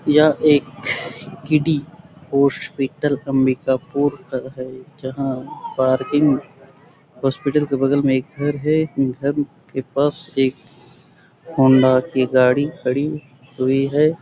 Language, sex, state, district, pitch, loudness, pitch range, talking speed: Hindi, male, Chhattisgarh, Sarguja, 140 Hz, -19 LUFS, 130-150 Hz, 95 wpm